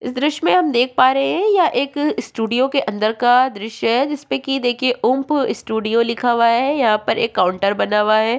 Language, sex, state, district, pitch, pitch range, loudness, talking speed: Hindi, female, Uttarakhand, Tehri Garhwal, 245 Hz, 220-270 Hz, -17 LUFS, 220 wpm